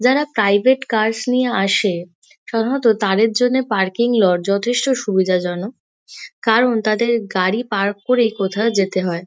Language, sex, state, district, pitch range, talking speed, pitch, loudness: Bengali, female, West Bengal, Kolkata, 195-245 Hz, 130 wpm, 220 Hz, -17 LUFS